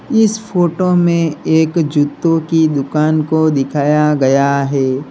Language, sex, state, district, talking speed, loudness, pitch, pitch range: Hindi, male, Uttar Pradesh, Lalitpur, 130 wpm, -14 LUFS, 155 Hz, 145-165 Hz